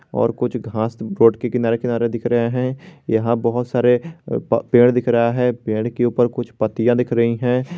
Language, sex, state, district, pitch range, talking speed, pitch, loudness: Hindi, male, Jharkhand, Garhwa, 115-125 Hz, 185 wpm, 120 Hz, -19 LUFS